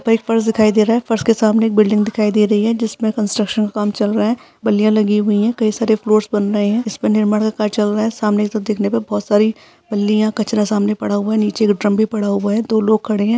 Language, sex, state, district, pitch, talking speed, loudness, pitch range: Hindi, female, Uttarakhand, Uttarkashi, 215 Hz, 280 wpm, -16 LUFS, 210-220 Hz